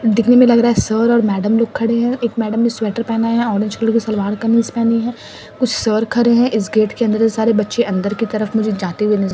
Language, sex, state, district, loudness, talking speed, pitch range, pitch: Hindi, female, Delhi, New Delhi, -16 LUFS, 270 wpm, 215-235 Hz, 225 Hz